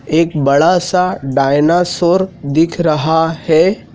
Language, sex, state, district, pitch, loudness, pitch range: Hindi, male, Madhya Pradesh, Dhar, 165 Hz, -13 LUFS, 150-180 Hz